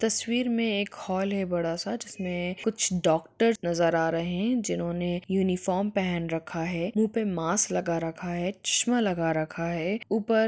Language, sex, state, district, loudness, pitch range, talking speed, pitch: Hindi, female, Jharkhand, Jamtara, -28 LUFS, 170-220 Hz, 170 wpm, 185 Hz